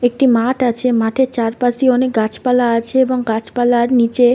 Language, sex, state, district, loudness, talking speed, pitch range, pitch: Bengali, female, West Bengal, North 24 Parganas, -15 LUFS, 165 wpm, 230-255 Hz, 245 Hz